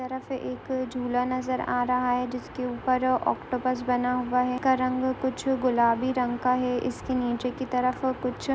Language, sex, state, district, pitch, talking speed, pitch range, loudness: Hindi, female, Andhra Pradesh, Guntur, 255 Hz, 175 wpm, 250-255 Hz, -27 LUFS